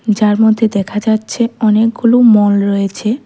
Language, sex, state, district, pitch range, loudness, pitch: Bengali, female, Tripura, West Tripura, 210-230 Hz, -12 LUFS, 220 Hz